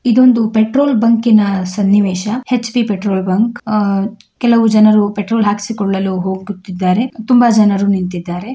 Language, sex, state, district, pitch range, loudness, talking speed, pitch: Kannada, female, Karnataka, Chamarajanagar, 195-230 Hz, -13 LUFS, 110 wpm, 210 Hz